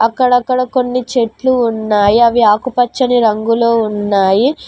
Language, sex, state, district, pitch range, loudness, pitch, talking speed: Telugu, female, Telangana, Mahabubabad, 220-255 Hz, -13 LUFS, 235 Hz, 105 wpm